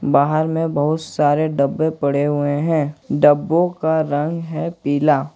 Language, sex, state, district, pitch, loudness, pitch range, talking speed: Hindi, male, Jharkhand, Ranchi, 150 Hz, -18 LUFS, 145-160 Hz, 145 wpm